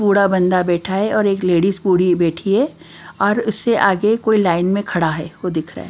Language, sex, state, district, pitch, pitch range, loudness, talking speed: Hindi, female, Bihar, Patna, 185 Hz, 175-205 Hz, -17 LUFS, 225 wpm